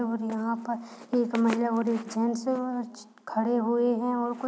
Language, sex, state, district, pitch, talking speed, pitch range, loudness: Hindi, female, Uttar Pradesh, Deoria, 235 Hz, 185 wpm, 230-240 Hz, -28 LUFS